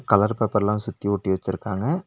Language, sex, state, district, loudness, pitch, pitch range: Tamil, male, Tamil Nadu, Nilgiris, -24 LUFS, 105 Hz, 100-110 Hz